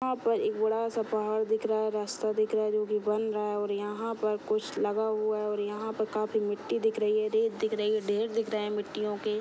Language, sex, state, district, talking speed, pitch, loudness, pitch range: Hindi, female, Chhattisgarh, Sukma, 280 wpm, 215 Hz, -30 LUFS, 210-220 Hz